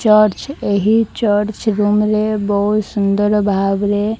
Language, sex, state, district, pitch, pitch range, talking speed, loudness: Odia, female, Odisha, Malkangiri, 210 Hz, 205-215 Hz, 130 wpm, -16 LUFS